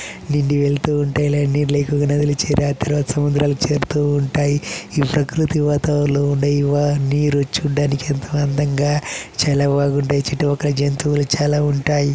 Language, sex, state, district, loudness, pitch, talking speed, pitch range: Telugu, male, Andhra Pradesh, Chittoor, -18 LUFS, 145 Hz, 120 wpm, 140-145 Hz